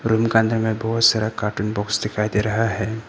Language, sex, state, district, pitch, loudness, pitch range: Hindi, male, Arunachal Pradesh, Papum Pare, 110 Hz, -20 LUFS, 105-115 Hz